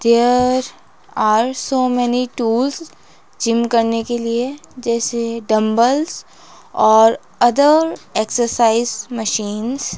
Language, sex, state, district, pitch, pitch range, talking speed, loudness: Hindi, female, Himachal Pradesh, Shimla, 235 Hz, 230-255 Hz, 95 wpm, -17 LUFS